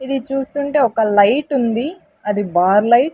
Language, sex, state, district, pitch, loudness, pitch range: Telugu, female, Andhra Pradesh, Sri Satya Sai, 250 Hz, -16 LUFS, 210-275 Hz